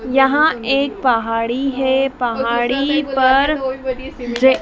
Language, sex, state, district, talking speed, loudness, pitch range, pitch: Hindi, female, Madhya Pradesh, Dhar, 90 wpm, -17 LUFS, 245-275 Hz, 265 Hz